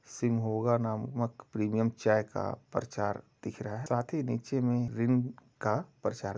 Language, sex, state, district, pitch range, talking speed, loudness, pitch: Hindi, male, Uttar Pradesh, Jalaun, 110-125 Hz, 160 wpm, -32 LUFS, 120 Hz